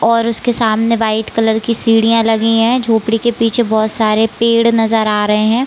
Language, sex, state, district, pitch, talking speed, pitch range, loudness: Hindi, female, Chhattisgarh, Raigarh, 225 Hz, 200 wpm, 220-230 Hz, -13 LUFS